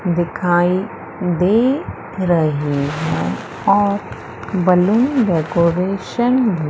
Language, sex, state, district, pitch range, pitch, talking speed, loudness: Hindi, female, Madhya Pradesh, Umaria, 170-205 Hz, 180 Hz, 70 wpm, -17 LUFS